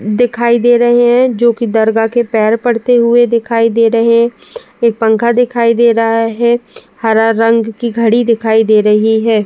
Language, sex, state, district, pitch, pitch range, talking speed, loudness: Hindi, female, Uttar Pradesh, Jalaun, 230 Hz, 225-240 Hz, 175 wpm, -11 LUFS